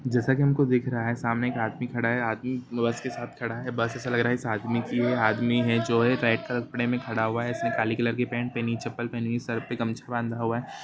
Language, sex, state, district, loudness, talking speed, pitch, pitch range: Hindi, male, Jharkhand, Jamtara, -27 LUFS, 300 wpm, 120 Hz, 115-125 Hz